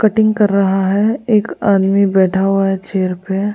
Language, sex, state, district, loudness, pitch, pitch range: Hindi, female, Goa, North and South Goa, -14 LUFS, 195 Hz, 190-210 Hz